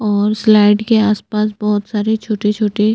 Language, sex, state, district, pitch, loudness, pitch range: Hindi, female, Chhattisgarh, Bastar, 210 Hz, -15 LUFS, 210-215 Hz